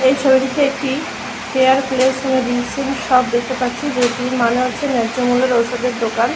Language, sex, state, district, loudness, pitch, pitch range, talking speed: Bengali, female, West Bengal, Malda, -17 LUFS, 255 Hz, 245-265 Hz, 115 wpm